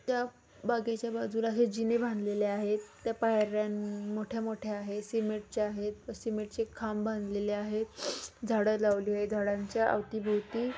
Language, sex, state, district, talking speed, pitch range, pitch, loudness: Marathi, female, Maharashtra, Nagpur, 130 wpm, 210-225 Hz, 215 Hz, -33 LUFS